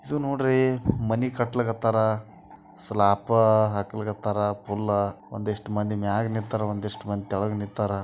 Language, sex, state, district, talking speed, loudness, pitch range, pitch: Kannada, male, Karnataka, Bijapur, 120 wpm, -26 LUFS, 105-115 Hz, 105 Hz